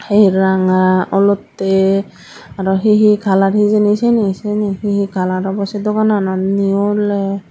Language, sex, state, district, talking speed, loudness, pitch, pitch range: Chakma, female, Tripura, Dhalai, 135 wpm, -14 LUFS, 195 Hz, 190-210 Hz